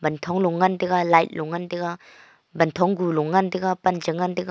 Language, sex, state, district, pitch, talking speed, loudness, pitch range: Wancho, female, Arunachal Pradesh, Longding, 175 Hz, 160 wpm, -22 LUFS, 170-185 Hz